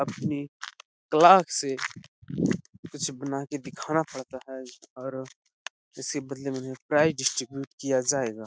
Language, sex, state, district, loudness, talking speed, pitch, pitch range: Hindi, male, Chhattisgarh, Korba, -27 LUFS, 135 wpm, 135 Hz, 130-145 Hz